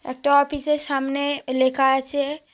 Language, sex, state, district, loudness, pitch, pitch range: Bengali, female, West Bengal, North 24 Parganas, -21 LUFS, 280 Hz, 265-290 Hz